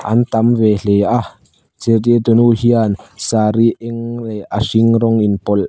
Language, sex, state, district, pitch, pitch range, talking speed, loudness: Mizo, male, Mizoram, Aizawl, 115 Hz, 105-115 Hz, 170 wpm, -14 LUFS